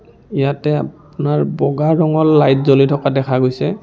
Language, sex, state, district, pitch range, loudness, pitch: Assamese, male, Assam, Kamrup Metropolitan, 135-150 Hz, -15 LUFS, 145 Hz